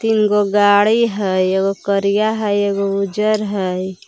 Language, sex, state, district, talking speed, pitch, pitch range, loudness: Magahi, female, Jharkhand, Palamu, 130 wpm, 205 Hz, 195-210 Hz, -16 LUFS